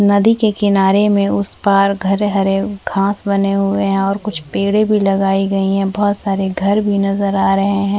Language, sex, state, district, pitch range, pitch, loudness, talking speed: Hindi, female, Chhattisgarh, Bastar, 195-205 Hz, 200 Hz, -15 LUFS, 210 wpm